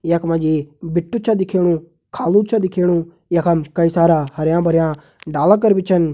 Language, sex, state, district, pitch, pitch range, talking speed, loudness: Hindi, male, Uttarakhand, Uttarkashi, 170 Hz, 165-180 Hz, 175 wpm, -17 LUFS